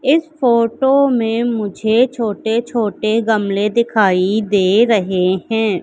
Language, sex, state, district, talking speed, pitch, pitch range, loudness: Hindi, female, Madhya Pradesh, Katni, 115 wpm, 225 Hz, 205-235 Hz, -15 LUFS